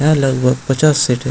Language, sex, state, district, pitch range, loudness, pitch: Hindi, male, Bihar, Purnia, 130-150 Hz, -14 LUFS, 135 Hz